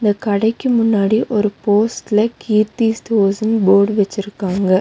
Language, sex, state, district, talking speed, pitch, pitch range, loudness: Tamil, female, Tamil Nadu, Nilgiris, 110 wpm, 210 Hz, 200-225 Hz, -16 LUFS